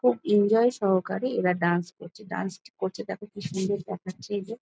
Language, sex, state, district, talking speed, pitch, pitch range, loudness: Bengali, female, West Bengal, Jalpaiguri, 180 wpm, 200 Hz, 185-215 Hz, -27 LUFS